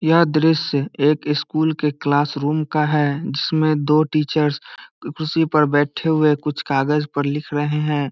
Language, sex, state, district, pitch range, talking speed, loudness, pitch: Hindi, male, Bihar, Samastipur, 145-155 Hz, 170 wpm, -19 LUFS, 150 Hz